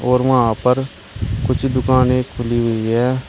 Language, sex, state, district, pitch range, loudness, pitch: Hindi, male, Uttar Pradesh, Shamli, 115-130 Hz, -17 LUFS, 125 Hz